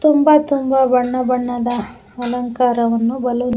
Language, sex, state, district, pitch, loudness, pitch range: Kannada, female, Karnataka, Bangalore, 250 Hz, -17 LUFS, 240-265 Hz